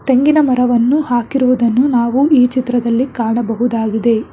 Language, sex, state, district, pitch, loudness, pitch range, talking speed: Kannada, female, Karnataka, Bangalore, 245 Hz, -14 LUFS, 235-260 Hz, 95 wpm